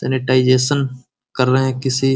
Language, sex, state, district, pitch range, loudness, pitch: Hindi, male, Bihar, Muzaffarpur, 130-135 Hz, -17 LUFS, 130 Hz